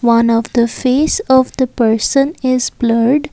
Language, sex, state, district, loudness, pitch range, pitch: English, female, Assam, Kamrup Metropolitan, -14 LUFS, 235-265 Hz, 255 Hz